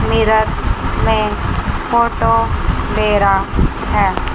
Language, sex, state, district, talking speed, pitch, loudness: Hindi, female, Chandigarh, Chandigarh, 85 wpm, 150 Hz, -16 LUFS